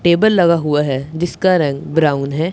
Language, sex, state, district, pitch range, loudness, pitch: Hindi, male, Punjab, Pathankot, 145-175 Hz, -15 LUFS, 160 Hz